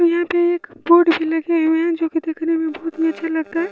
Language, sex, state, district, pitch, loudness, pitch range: Hindi, female, Bihar, Supaul, 330 Hz, -18 LUFS, 325-340 Hz